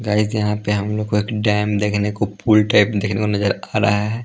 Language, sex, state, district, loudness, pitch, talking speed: Hindi, male, Punjab, Pathankot, -18 LUFS, 105 Hz, 270 wpm